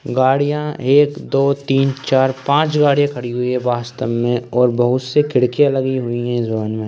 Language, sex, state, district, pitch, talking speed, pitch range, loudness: Hindi, male, Uttar Pradesh, Ghazipur, 130 Hz, 190 wpm, 120-140 Hz, -17 LUFS